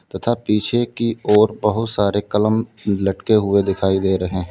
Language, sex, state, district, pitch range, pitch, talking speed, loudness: Hindi, male, Uttar Pradesh, Lalitpur, 95-110 Hz, 105 Hz, 175 wpm, -18 LUFS